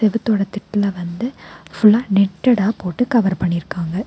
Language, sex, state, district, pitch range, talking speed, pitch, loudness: Tamil, female, Tamil Nadu, Nilgiris, 185-225 Hz, 120 wpm, 205 Hz, -18 LUFS